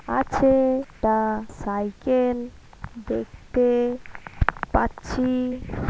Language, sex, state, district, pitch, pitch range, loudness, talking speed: Bengali, female, West Bengal, Purulia, 245 Hz, 215-255 Hz, -24 LUFS, 50 wpm